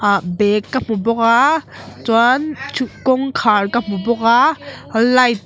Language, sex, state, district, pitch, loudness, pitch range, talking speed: Mizo, female, Mizoram, Aizawl, 230 Hz, -16 LUFS, 210-260 Hz, 145 wpm